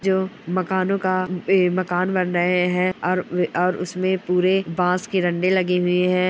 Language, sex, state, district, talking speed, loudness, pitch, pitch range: Hindi, male, Bihar, Bhagalpur, 180 wpm, -21 LUFS, 185 Hz, 180-185 Hz